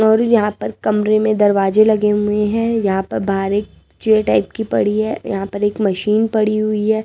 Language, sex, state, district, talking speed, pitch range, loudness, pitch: Hindi, female, Delhi, New Delhi, 215 wpm, 205-220 Hz, -16 LUFS, 215 Hz